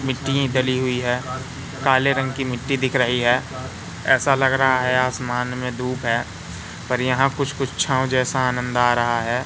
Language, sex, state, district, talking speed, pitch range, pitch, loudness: Hindi, male, Madhya Pradesh, Katni, 185 wpm, 125-135 Hz, 130 Hz, -20 LUFS